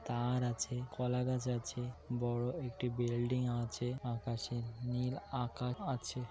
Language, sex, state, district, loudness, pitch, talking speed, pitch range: Bengali, male, West Bengal, North 24 Parganas, -38 LUFS, 125 Hz, 125 wpm, 120-125 Hz